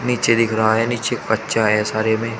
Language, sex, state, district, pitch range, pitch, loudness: Hindi, male, Uttar Pradesh, Shamli, 110-115 Hz, 110 Hz, -18 LUFS